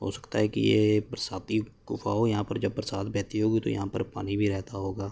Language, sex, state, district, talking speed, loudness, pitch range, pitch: Hindi, male, Uttar Pradesh, Hamirpur, 245 wpm, -29 LUFS, 100-110 Hz, 105 Hz